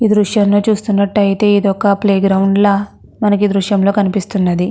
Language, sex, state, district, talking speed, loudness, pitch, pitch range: Telugu, female, Andhra Pradesh, Krishna, 140 wpm, -13 LUFS, 200 Hz, 195-205 Hz